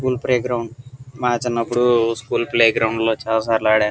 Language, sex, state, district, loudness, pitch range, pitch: Telugu, male, Andhra Pradesh, Guntur, -19 LUFS, 115-125 Hz, 120 Hz